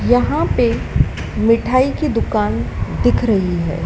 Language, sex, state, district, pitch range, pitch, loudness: Hindi, male, Madhya Pradesh, Dhar, 175-230 Hz, 215 Hz, -17 LUFS